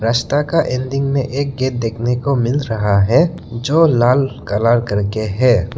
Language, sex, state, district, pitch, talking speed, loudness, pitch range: Hindi, male, Arunachal Pradesh, Lower Dibang Valley, 125 Hz, 165 wpm, -16 LUFS, 115-140 Hz